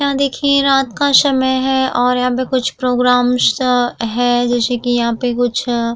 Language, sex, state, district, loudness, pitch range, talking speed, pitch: Hindi, female, Uttar Pradesh, Jyotiba Phule Nagar, -15 LUFS, 245-265 Hz, 190 wpm, 250 Hz